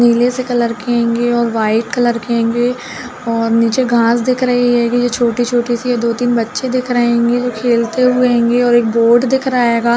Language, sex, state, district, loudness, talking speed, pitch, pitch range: Hindi, female, Uttar Pradesh, Budaun, -14 LUFS, 205 wpm, 240 Hz, 235-245 Hz